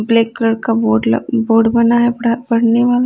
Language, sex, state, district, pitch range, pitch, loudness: Hindi, female, Delhi, New Delhi, 225-235 Hz, 230 Hz, -14 LUFS